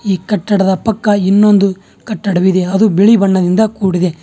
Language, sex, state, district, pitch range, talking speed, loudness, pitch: Kannada, male, Karnataka, Bangalore, 190-210 Hz, 125 wpm, -12 LUFS, 195 Hz